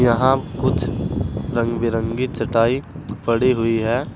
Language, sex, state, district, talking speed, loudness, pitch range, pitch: Hindi, male, Uttar Pradesh, Saharanpur, 115 wpm, -20 LUFS, 115-130 Hz, 120 Hz